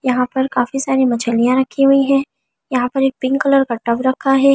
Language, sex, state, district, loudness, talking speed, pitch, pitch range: Hindi, female, Delhi, New Delhi, -16 LUFS, 235 wpm, 265 Hz, 250-275 Hz